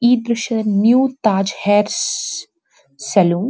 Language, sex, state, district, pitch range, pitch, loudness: Kannada, female, Karnataka, Dharwad, 205-245 Hz, 225 Hz, -17 LUFS